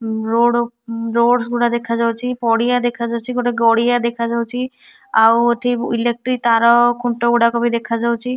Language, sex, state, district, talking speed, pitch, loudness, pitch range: Odia, female, Odisha, Nuapada, 130 wpm, 235 Hz, -17 LUFS, 235-240 Hz